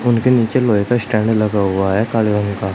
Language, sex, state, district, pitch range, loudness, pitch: Hindi, male, Uttar Pradesh, Shamli, 100-120 Hz, -16 LUFS, 110 Hz